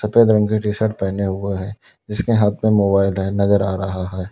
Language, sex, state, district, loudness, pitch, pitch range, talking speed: Hindi, male, Uttar Pradesh, Lalitpur, -18 LUFS, 100 Hz, 95-105 Hz, 235 wpm